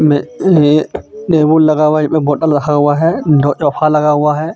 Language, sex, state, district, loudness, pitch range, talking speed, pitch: Hindi, male, Jharkhand, Deoghar, -12 LUFS, 145-155 Hz, 210 wpm, 150 Hz